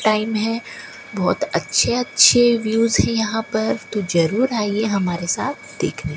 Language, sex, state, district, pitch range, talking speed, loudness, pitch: Hindi, female, Rajasthan, Bikaner, 210-230 Hz, 145 wpm, -19 LUFS, 220 Hz